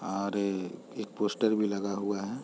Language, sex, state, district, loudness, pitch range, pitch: Hindi, male, Chhattisgarh, Raigarh, -31 LUFS, 100-105 Hz, 100 Hz